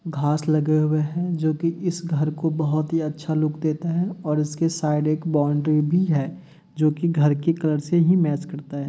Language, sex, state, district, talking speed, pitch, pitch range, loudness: Hindi, male, Uttar Pradesh, Etah, 210 wpm, 155 Hz, 150-165 Hz, -22 LUFS